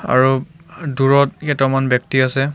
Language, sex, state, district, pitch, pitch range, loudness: Assamese, male, Assam, Kamrup Metropolitan, 135 Hz, 130-145 Hz, -16 LUFS